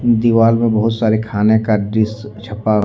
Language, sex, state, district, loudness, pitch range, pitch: Hindi, male, Jharkhand, Deoghar, -15 LUFS, 105-115 Hz, 110 Hz